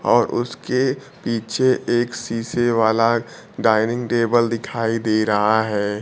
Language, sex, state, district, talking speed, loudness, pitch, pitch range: Hindi, male, Bihar, Kaimur, 120 wpm, -20 LUFS, 115 Hz, 110-120 Hz